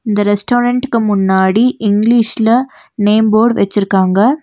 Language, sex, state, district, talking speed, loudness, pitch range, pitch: Tamil, female, Tamil Nadu, Nilgiris, 95 wpm, -12 LUFS, 205-240 Hz, 220 Hz